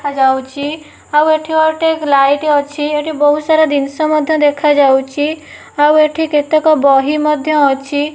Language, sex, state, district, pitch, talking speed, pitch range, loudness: Odia, female, Odisha, Nuapada, 295 Hz, 135 wpm, 285-310 Hz, -13 LUFS